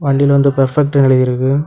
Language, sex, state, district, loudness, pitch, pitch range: Tamil, male, Tamil Nadu, Kanyakumari, -12 LUFS, 140 Hz, 130-140 Hz